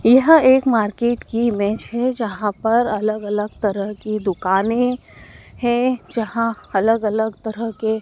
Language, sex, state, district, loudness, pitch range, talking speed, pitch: Hindi, female, Madhya Pradesh, Dhar, -19 LUFS, 210-240 Hz, 150 wpm, 225 Hz